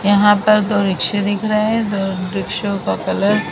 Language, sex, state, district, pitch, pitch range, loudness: Hindi, male, Maharashtra, Mumbai Suburban, 205 Hz, 195-210 Hz, -17 LUFS